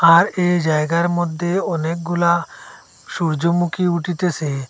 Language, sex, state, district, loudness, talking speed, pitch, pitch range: Bengali, male, Assam, Hailakandi, -19 LUFS, 90 wpm, 170 Hz, 165-175 Hz